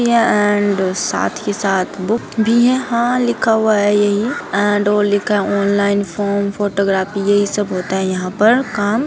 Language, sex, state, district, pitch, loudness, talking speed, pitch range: Hindi, female, Uttar Pradesh, Hamirpur, 205 Hz, -16 LUFS, 180 wpm, 200-220 Hz